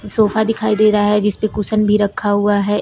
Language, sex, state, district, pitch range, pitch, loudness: Hindi, female, Uttar Pradesh, Lucknow, 205-215 Hz, 210 Hz, -15 LUFS